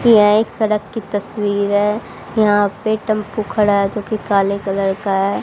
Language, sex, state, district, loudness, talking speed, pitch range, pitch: Hindi, female, Haryana, Jhajjar, -17 LUFS, 190 wpm, 200-215 Hz, 210 Hz